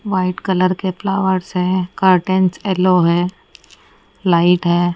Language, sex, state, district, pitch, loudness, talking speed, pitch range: Hindi, female, Odisha, Nuapada, 185 Hz, -16 LUFS, 120 wpm, 180-190 Hz